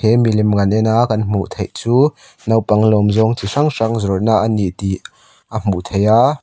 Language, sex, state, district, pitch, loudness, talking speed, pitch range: Mizo, male, Mizoram, Aizawl, 110 Hz, -16 LUFS, 205 wpm, 100-115 Hz